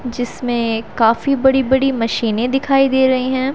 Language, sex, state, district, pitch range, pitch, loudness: Hindi, female, Haryana, Rohtak, 235-265 Hz, 255 Hz, -16 LUFS